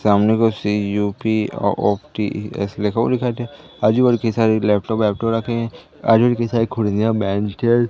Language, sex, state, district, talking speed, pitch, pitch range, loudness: Hindi, male, Madhya Pradesh, Katni, 150 wpm, 110 Hz, 105-115 Hz, -19 LUFS